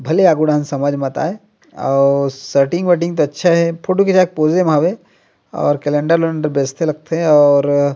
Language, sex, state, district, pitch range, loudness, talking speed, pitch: Chhattisgarhi, male, Chhattisgarh, Rajnandgaon, 145-170 Hz, -15 LUFS, 180 wpm, 155 Hz